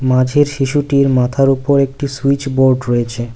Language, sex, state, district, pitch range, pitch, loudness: Bengali, male, West Bengal, Cooch Behar, 130-140 Hz, 135 Hz, -14 LUFS